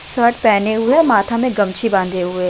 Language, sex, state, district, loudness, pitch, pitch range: Hindi, female, Uttar Pradesh, Budaun, -15 LUFS, 220 Hz, 190-235 Hz